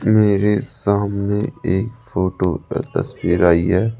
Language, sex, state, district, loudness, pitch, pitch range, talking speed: Hindi, male, Rajasthan, Jaipur, -19 LUFS, 100 Hz, 95-110 Hz, 120 wpm